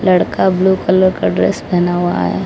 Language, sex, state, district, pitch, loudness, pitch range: Hindi, female, Odisha, Malkangiri, 185 Hz, -14 LUFS, 175-190 Hz